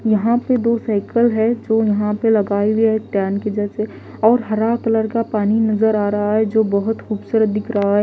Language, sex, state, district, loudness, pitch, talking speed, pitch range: Hindi, female, Delhi, New Delhi, -18 LUFS, 220 Hz, 215 wpm, 210-225 Hz